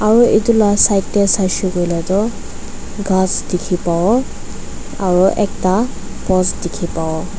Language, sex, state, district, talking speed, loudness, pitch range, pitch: Nagamese, female, Nagaland, Dimapur, 130 wpm, -15 LUFS, 180-210 Hz, 190 Hz